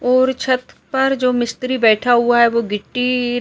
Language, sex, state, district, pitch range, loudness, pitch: Hindi, male, Maharashtra, Nagpur, 240-255 Hz, -16 LUFS, 250 Hz